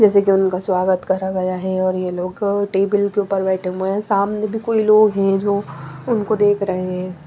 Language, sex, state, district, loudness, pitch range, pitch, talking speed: Hindi, female, Punjab, Pathankot, -18 LUFS, 185-205 Hz, 195 Hz, 215 wpm